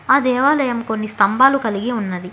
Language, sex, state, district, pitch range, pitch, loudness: Telugu, female, Telangana, Hyderabad, 210-265 Hz, 235 Hz, -17 LUFS